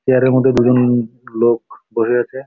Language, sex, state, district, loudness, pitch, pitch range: Bengali, male, West Bengal, Jalpaiguri, -15 LUFS, 120 Hz, 120-130 Hz